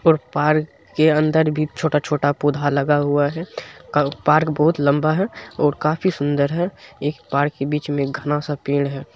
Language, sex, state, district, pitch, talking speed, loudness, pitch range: Hindi, male, Bihar, Supaul, 150 Hz, 170 wpm, -20 LUFS, 145-155 Hz